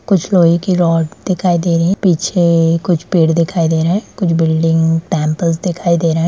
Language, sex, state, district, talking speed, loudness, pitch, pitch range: Hindi, female, Bihar, Darbhanga, 220 wpm, -14 LUFS, 170 Hz, 165-180 Hz